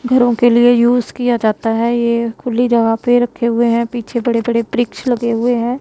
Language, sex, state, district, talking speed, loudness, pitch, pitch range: Hindi, female, Punjab, Pathankot, 215 wpm, -15 LUFS, 235 Hz, 235-245 Hz